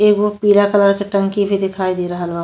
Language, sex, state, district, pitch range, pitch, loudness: Bhojpuri, female, Uttar Pradesh, Ghazipur, 185-205 Hz, 200 Hz, -16 LUFS